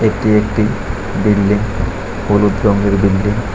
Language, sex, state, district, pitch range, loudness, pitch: Bengali, male, Tripura, West Tripura, 100-105 Hz, -15 LUFS, 105 Hz